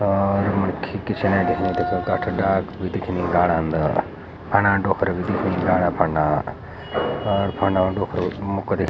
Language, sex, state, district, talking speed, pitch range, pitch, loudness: Garhwali, male, Uttarakhand, Uttarkashi, 150 wpm, 90-100 Hz, 95 Hz, -21 LUFS